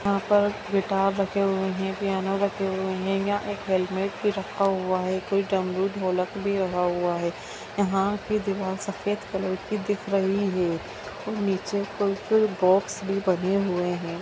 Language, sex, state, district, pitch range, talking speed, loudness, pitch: Hindi, female, Bihar, Darbhanga, 190-200 Hz, 165 wpm, -26 LUFS, 195 Hz